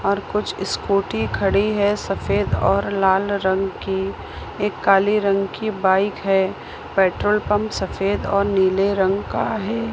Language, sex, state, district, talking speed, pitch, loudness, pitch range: Hindi, female, Maharashtra, Mumbai Suburban, 145 wpm, 200 Hz, -20 LUFS, 195-205 Hz